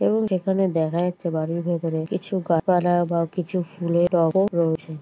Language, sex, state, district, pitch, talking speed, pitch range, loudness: Bengali, male, West Bengal, Jalpaiguri, 175 Hz, 165 wpm, 165-185 Hz, -23 LUFS